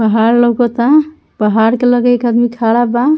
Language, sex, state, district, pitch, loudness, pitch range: Bhojpuri, female, Bihar, Muzaffarpur, 240 Hz, -12 LUFS, 230-245 Hz